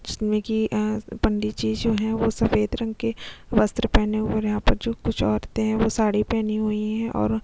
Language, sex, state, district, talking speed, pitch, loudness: Hindi, female, Chhattisgarh, Kabirdham, 225 wpm, 215 Hz, -24 LUFS